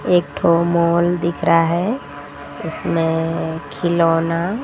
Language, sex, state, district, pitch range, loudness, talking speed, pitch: Hindi, female, Odisha, Sambalpur, 165-175 Hz, -18 LUFS, 105 wpm, 170 Hz